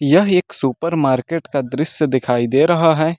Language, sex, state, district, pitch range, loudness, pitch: Hindi, male, Uttar Pradesh, Lucknow, 130-165 Hz, -17 LUFS, 150 Hz